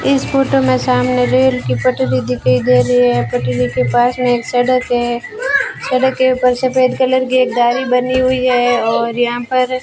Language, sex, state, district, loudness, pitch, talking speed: Hindi, female, Rajasthan, Bikaner, -14 LUFS, 240 Hz, 200 wpm